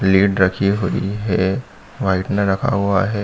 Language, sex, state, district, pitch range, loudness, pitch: Hindi, male, Chhattisgarh, Bilaspur, 95-105 Hz, -18 LUFS, 100 Hz